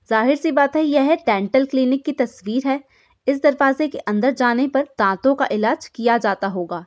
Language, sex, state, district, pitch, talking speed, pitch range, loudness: Hindi, female, Uttar Pradesh, Hamirpur, 265 Hz, 190 wpm, 220-280 Hz, -19 LUFS